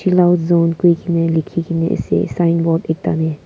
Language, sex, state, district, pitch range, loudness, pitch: Nagamese, female, Nagaland, Kohima, 165-175 Hz, -16 LUFS, 170 Hz